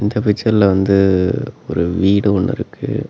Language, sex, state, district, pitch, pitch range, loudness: Tamil, male, Tamil Nadu, Namakkal, 100 Hz, 95-105 Hz, -16 LUFS